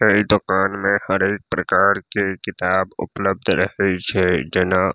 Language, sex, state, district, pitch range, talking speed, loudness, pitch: Maithili, male, Bihar, Saharsa, 95-100 Hz, 160 wpm, -19 LUFS, 95 Hz